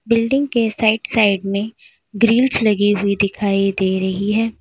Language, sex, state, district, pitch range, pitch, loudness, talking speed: Hindi, female, Uttar Pradesh, Lalitpur, 200-230 Hz, 215 Hz, -17 LUFS, 155 wpm